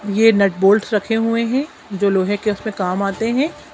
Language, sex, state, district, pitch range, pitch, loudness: Hindi, female, Chhattisgarh, Sukma, 200-225 Hz, 210 Hz, -18 LUFS